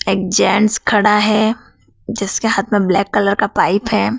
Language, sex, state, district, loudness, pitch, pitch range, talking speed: Hindi, female, Madhya Pradesh, Dhar, -15 LUFS, 210 Hz, 200-215 Hz, 170 wpm